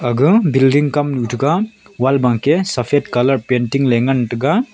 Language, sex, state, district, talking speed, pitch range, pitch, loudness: Wancho, male, Arunachal Pradesh, Longding, 140 wpm, 125-145 Hz, 135 Hz, -15 LUFS